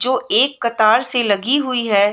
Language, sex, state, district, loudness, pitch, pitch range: Hindi, female, Bihar, Samastipur, -16 LUFS, 240 Hz, 215-255 Hz